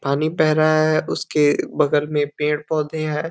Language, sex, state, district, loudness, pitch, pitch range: Hindi, male, Uttar Pradesh, Deoria, -19 LUFS, 150 Hz, 150-155 Hz